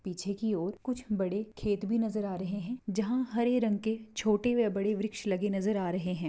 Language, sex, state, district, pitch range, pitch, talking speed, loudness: Hindi, female, Maharashtra, Nagpur, 195-225 Hz, 210 Hz, 230 wpm, -32 LUFS